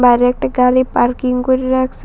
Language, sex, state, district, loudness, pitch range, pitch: Bengali, female, Tripura, West Tripura, -14 LUFS, 250-260 Hz, 255 Hz